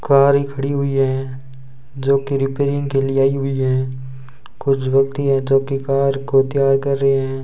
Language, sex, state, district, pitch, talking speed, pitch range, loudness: Hindi, male, Rajasthan, Bikaner, 135 Hz, 195 wpm, 135-140 Hz, -18 LUFS